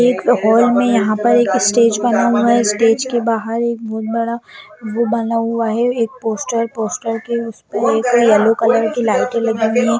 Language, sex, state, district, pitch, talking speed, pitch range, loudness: Hindi, female, Bihar, Jamui, 230 Hz, 200 wpm, 220-235 Hz, -15 LUFS